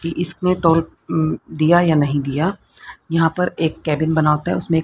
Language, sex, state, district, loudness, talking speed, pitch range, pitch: Hindi, female, Haryana, Rohtak, -18 LUFS, 210 wpm, 155-170 Hz, 165 Hz